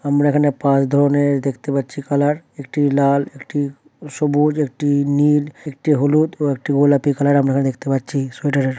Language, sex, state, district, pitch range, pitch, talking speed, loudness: Bengali, male, West Bengal, Dakshin Dinajpur, 140-145 Hz, 145 Hz, 170 wpm, -18 LUFS